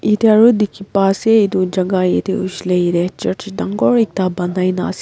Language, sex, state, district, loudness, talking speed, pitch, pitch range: Nagamese, female, Nagaland, Kohima, -15 LUFS, 205 wpm, 190 Hz, 185-210 Hz